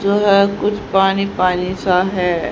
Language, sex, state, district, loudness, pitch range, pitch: Hindi, female, Haryana, Rohtak, -16 LUFS, 180-200 Hz, 195 Hz